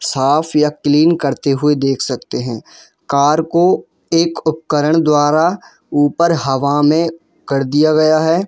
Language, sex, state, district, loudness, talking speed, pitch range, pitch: Hindi, male, Jharkhand, Jamtara, -15 LUFS, 135 wpm, 140-165 Hz, 150 Hz